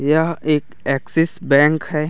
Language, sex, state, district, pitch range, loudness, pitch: Hindi, male, Chhattisgarh, Raigarh, 150-160 Hz, -18 LUFS, 150 Hz